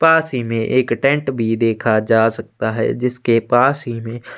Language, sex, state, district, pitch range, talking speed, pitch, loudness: Hindi, male, Chhattisgarh, Sukma, 115-130 Hz, 190 wpm, 120 Hz, -17 LUFS